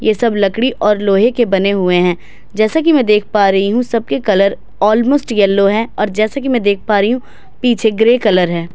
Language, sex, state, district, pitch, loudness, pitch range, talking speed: Hindi, female, Bihar, Katihar, 210 Hz, -13 LUFS, 200-235 Hz, 220 wpm